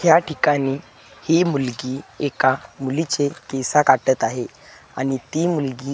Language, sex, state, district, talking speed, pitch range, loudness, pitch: Marathi, male, Maharashtra, Gondia, 130 wpm, 130-155 Hz, -21 LUFS, 140 Hz